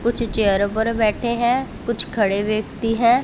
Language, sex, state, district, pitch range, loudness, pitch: Hindi, female, Punjab, Pathankot, 215-235 Hz, -20 LUFS, 225 Hz